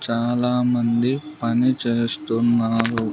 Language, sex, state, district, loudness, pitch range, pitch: Telugu, male, Andhra Pradesh, Sri Satya Sai, -21 LUFS, 115-125 Hz, 120 Hz